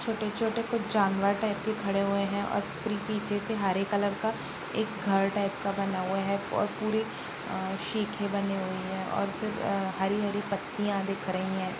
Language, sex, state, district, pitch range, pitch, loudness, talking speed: Hindi, female, Bihar, Darbhanga, 195-215 Hz, 200 Hz, -30 LUFS, 175 wpm